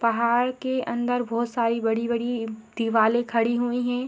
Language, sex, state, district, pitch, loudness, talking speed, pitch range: Hindi, female, Jharkhand, Sahebganj, 235 Hz, -24 LUFS, 175 wpm, 230-245 Hz